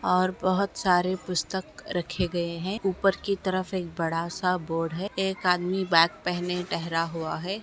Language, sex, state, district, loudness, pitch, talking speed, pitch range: Hindi, female, Uttar Pradesh, Gorakhpur, -27 LUFS, 180 Hz, 175 wpm, 170-190 Hz